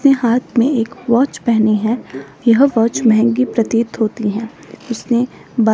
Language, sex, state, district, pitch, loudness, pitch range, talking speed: Hindi, male, Himachal Pradesh, Shimla, 235 Hz, -15 LUFS, 225-245 Hz, 155 wpm